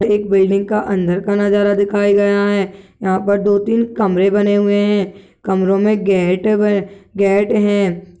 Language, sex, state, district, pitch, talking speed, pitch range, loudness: Hindi, male, Chhattisgarh, Kabirdham, 200 Hz, 160 wpm, 195-205 Hz, -15 LUFS